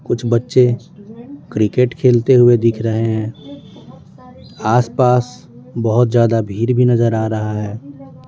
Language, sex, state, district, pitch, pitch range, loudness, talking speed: Hindi, male, Bihar, West Champaran, 120 Hz, 115-125 Hz, -15 LUFS, 130 wpm